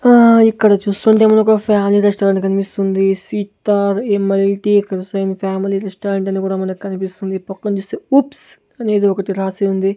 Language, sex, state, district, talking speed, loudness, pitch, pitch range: Telugu, male, Andhra Pradesh, Sri Satya Sai, 140 wpm, -15 LUFS, 200 Hz, 195-210 Hz